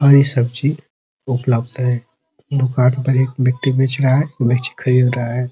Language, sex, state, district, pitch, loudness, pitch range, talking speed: Hindi, male, Uttar Pradesh, Ghazipur, 130 Hz, -17 LUFS, 125-135 Hz, 195 wpm